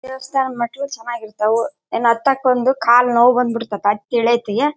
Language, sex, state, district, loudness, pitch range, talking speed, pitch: Kannada, female, Karnataka, Bellary, -17 LUFS, 230-260 Hz, 175 wpm, 240 Hz